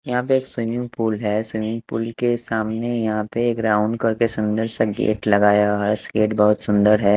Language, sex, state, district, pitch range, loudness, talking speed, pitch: Hindi, male, Haryana, Charkhi Dadri, 105-115 Hz, -20 LUFS, 215 wpm, 110 Hz